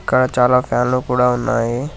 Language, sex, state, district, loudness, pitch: Telugu, male, Telangana, Hyderabad, -16 LUFS, 125 Hz